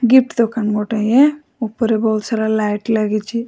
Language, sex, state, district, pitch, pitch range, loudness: Odia, female, Odisha, Khordha, 220 Hz, 215-235 Hz, -17 LUFS